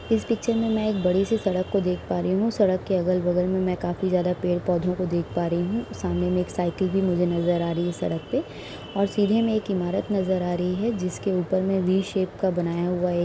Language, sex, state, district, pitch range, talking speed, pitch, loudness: Hindi, female, Uttar Pradesh, Etah, 180-195 Hz, 265 wpm, 185 Hz, -24 LUFS